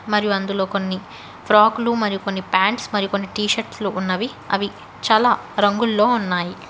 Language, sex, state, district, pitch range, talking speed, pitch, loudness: Telugu, female, Telangana, Hyderabad, 195-215 Hz, 145 wpm, 200 Hz, -20 LUFS